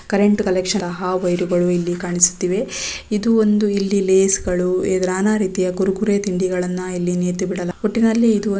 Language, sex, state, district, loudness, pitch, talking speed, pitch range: Kannada, female, Karnataka, Raichur, -18 LUFS, 185 Hz, 155 wpm, 180-205 Hz